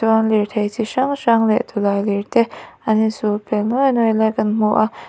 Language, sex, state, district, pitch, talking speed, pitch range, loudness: Mizo, female, Mizoram, Aizawl, 220 Hz, 200 wpm, 210-230 Hz, -18 LUFS